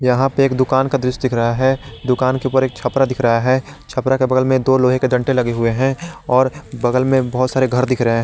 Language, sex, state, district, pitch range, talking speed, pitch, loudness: Hindi, male, Jharkhand, Garhwa, 125-130 Hz, 260 wpm, 130 Hz, -17 LUFS